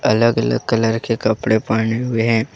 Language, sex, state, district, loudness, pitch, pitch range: Hindi, male, Jharkhand, Deoghar, -18 LUFS, 115 Hz, 110-115 Hz